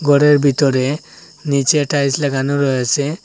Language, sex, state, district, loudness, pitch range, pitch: Bengali, male, Assam, Hailakandi, -15 LUFS, 135-145 Hz, 145 Hz